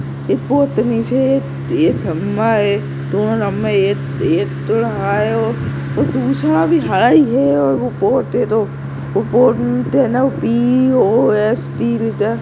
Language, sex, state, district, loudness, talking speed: Hindi, male, Bihar, Jamui, -15 LUFS, 155 wpm